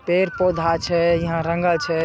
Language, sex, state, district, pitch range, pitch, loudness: Maithili, male, Bihar, Saharsa, 165-175 Hz, 170 Hz, -20 LUFS